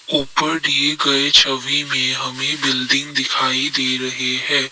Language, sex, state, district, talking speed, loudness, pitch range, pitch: Hindi, male, Assam, Kamrup Metropolitan, 140 wpm, -16 LUFS, 130-145 Hz, 135 Hz